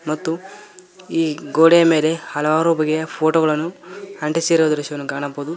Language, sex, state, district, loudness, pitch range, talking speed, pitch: Kannada, male, Karnataka, Koppal, -18 LUFS, 155-165 Hz, 120 wpm, 160 Hz